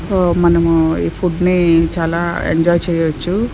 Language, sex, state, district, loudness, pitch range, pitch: Telugu, female, Andhra Pradesh, Sri Satya Sai, -15 LUFS, 165-180 Hz, 170 Hz